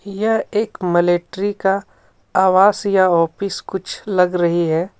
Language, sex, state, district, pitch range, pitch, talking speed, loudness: Hindi, male, Jharkhand, Ranchi, 175-200 Hz, 190 Hz, 130 wpm, -18 LUFS